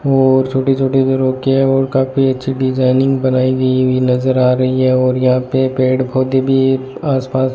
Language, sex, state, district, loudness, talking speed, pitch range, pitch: Hindi, male, Rajasthan, Bikaner, -14 LUFS, 185 wpm, 130-135 Hz, 130 Hz